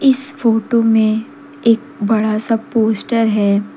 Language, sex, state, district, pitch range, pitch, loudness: Hindi, female, Jharkhand, Deoghar, 220-245 Hz, 225 Hz, -16 LUFS